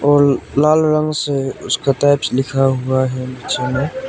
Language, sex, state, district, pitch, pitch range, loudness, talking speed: Hindi, male, Arunachal Pradesh, Lower Dibang Valley, 140 Hz, 130-145 Hz, -16 LUFS, 160 wpm